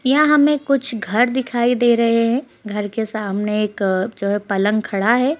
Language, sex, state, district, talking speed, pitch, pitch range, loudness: Hindi, female, Bihar, Jamui, 190 wpm, 230 Hz, 205-255 Hz, -18 LUFS